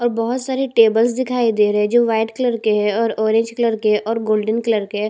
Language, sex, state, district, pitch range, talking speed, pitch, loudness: Hindi, female, Chhattisgarh, Bastar, 215-240 Hz, 260 wpm, 225 Hz, -17 LUFS